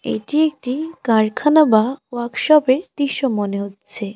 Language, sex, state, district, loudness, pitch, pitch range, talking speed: Bengali, female, West Bengal, Alipurduar, -18 LUFS, 255 Hz, 220-295 Hz, 130 wpm